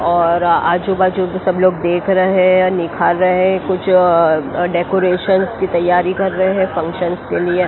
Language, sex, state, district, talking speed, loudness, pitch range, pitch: Hindi, female, Maharashtra, Mumbai Suburban, 170 wpm, -15 LUFS, 175-185 Hz, 180 Hz